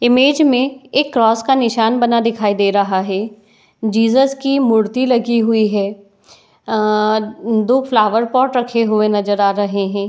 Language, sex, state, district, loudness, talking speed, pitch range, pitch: Hindi, female, Uttar Pradesh, Etah, -15 LUFS, 170 wpm, 205-245 Hz, 225 Hz